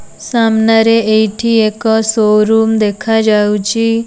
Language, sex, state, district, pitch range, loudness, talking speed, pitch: Odia, female, Odisha, Nuapada, 215-225 Hz, -11 LUFS, 90 wpm, 220 Hz